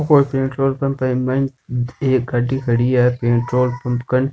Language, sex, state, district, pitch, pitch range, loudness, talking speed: Rajasthani, male, Rajasthan, Nagaur, 130 Hz, 125-135 Hz, -18 LUFS, 180 wpm